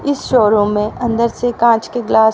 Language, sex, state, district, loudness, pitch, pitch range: Hindi, female, Haryana, Rohtak, -15 LUFS, 230 Hz, 215-240 Hz